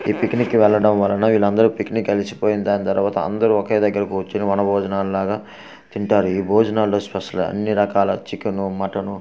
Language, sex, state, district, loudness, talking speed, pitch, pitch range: Telugu, male, Andhra Pradesh, Manyam, -19 LUFS, 150 wpm, 100 Hz, 100-105 Hz